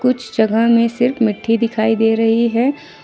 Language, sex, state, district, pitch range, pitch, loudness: Hindi, female, Jharkhand, Ranchi, 225-240 Hz, 230 Hz, -16 LUFS